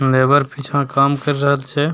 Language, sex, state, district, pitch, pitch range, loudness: Maithili, male, Bihar, Begusarai, 140 Hz, 135-145 Hz, -16 LUFS